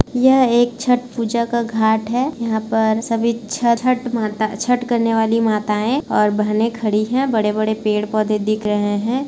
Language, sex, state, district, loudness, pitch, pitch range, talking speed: Hindi, female, Bihar, Kishanganj, -18 LUFS, 225 Hz, 215-240 Hz, 150 wpm